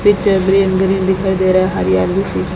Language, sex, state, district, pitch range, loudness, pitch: Hindi, female, Rajasthan, Bikaner, 185-195 Hz, -14 LUFS, 190 Hz